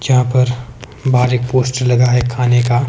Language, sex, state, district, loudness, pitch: Hindi, male, Himachal Pradesh, Shimla, -14 LUFS, 125 Hz